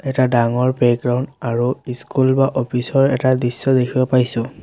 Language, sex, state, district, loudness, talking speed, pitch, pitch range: Assamese, male, Assam, Sonitpur, -18 LUFS, 155 wpm, 130 Hz, 125-130 Hz